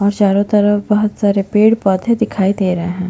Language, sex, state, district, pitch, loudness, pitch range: Hindi, female, Chhattisgarh, Bastar, 205 Hz, -14 LUFS, 195-210 Hz